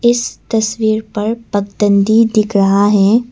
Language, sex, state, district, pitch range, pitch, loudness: Hindi, female, Arunachal Pradesh, Papum Pare, 205-230 Hz, 215 Hz, -13 LUFS